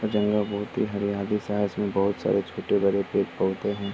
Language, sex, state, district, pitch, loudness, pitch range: Hindi, male, Uttar Pradesh, Muzaffarnagar, 100 Hz, -26 LUFS, 100-105 Hz